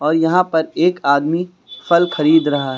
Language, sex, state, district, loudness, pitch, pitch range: Hindi, male, Uttar Pradesh, Lucknow, -16 LUFS, 160 Hz, 150-175 Hz